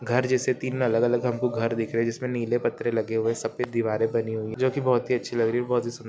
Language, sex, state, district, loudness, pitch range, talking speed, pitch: Hindi, male, Maharashtra, Solapur, -26 LUFS, 115-125 Hz, 305 wpm, 120 Hz